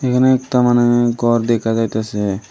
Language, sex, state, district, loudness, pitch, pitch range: Bengali, male, Tripura, Dhalai, -16 LUFS, 120 Hz, 115-125 Hz